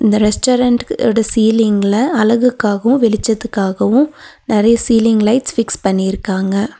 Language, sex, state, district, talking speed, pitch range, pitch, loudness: Tamil, female, Tamil Nadu, Nilgiris, 95 wpm, 210-240 Hz, 225 Hz, -14 LUFS